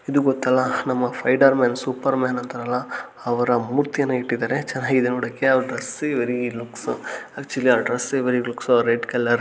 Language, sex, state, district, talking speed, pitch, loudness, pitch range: Kannada, male, Karnataka, Gulbarga, 155 wpm, 125 Hz, -22 LUFS, 120-135 Hz